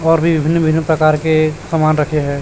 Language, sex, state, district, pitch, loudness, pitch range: Hindi, male, Chhattisgarh, Raipur, 155 Hz, -14 LUFS, 155-160 Hz